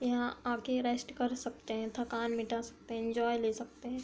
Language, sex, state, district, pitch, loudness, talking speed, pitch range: Hindi, female, Uttar Pradesh, Hamirpur, 240 Hz, -36 LUFS, 220 wpm, 230-245 Hz